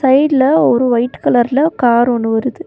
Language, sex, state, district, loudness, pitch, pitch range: Tamil, female, Tamil Nadu, Nilgiris, -13 LUFS, 250 Hz, 240-280 Hz